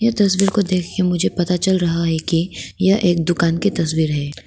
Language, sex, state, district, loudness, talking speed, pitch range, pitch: Hindi, female, Arunachal Pradesh, Lower Dibang Valley, -18 LUFS, 230 wpm, 165-190 Hz, 175 Hz